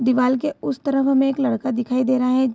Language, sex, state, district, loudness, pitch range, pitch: Hindi, female, Bihar, Saharsa, -20 LUFS, 250-270 Hz, 255 Hz